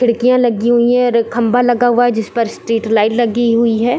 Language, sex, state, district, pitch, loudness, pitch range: Hindi, female, Chhattisgarh, Bilaspur, 235 Hz, -13 LUFS, 230-245 Hz